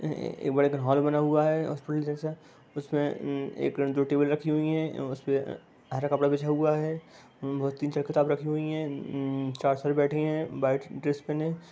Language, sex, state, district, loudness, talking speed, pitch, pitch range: Hindi, female, Bihar, Darbhanga, -28 LUFS, 190 wpm, 145 Hz, 140-155 Hz